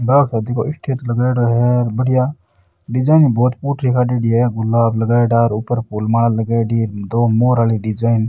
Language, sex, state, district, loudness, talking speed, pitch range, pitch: Rajasthani, male, Rajasthan, Nagaur, -16 LUFS, 175 wpm, 115-125 Hz, 120 Hz